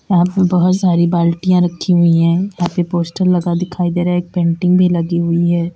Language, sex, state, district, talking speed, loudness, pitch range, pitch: Hindi, female, Uttar Pradesh, Lalitpur, 230 wpm, -15 LUFS, 170-180 Hz, 175 Hz